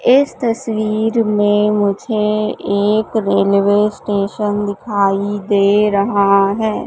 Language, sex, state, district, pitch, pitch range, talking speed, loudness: Hindi, female, Madhya Pradesh, Katni, 205 Hz, 200-215 Hz, 95 wpm, -15 LUFS